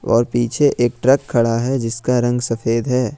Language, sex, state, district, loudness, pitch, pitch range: Hindi, male, Jharkhand, Ranchi, -17 LUFS, 120 Hz, 115-125 Hz